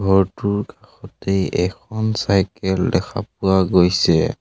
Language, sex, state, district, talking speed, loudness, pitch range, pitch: Assamese, male, Assam, Sonitpur, 95 wpm, -19 LUFS, 95-100 Hz, 95 Hz